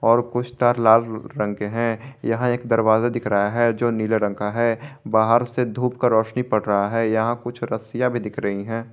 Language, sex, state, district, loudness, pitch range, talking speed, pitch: Hindi, male, Jharkhand, Garhwa, -21 LUFS, 110-120 Hz, 220 wpm, 115 Hz